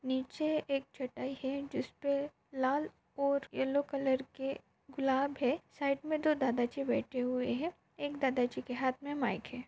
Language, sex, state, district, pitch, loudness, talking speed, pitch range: Hindi, female, Maharashtra, Pune, 270 Hz, -35 LUFS, 165 wpm, 260-280 Hz